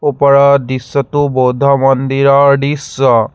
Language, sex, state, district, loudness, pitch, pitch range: Assamese, male, Assam, Sonitpur, -11 LUFS, 140 Hz, 135-140 Hz